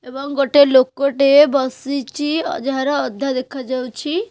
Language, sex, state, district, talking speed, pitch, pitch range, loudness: Odia, female, Odisha, Khordha, 125 wpm, 275 Hz, 265-290 Hz, -17 LUFS